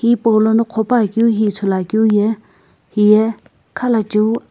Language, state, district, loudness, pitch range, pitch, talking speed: Sumi, Nagaland, Kohima, -15 LUFS, 210-230 Hz, 220 Hz, 95 wpm